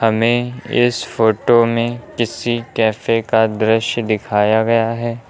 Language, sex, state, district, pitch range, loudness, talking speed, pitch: Hindi, male, Uttar Pradesh, Lucknow, 110-120 Hz, -17 LUFS, 125 wpm, 115 Hz